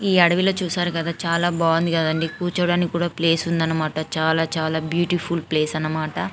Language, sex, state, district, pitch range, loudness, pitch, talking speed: Telugu, female, Andhra Pradesh, Anantapur, 160-175 Hz, -21 LUFS, 165 Hz, 170 wpm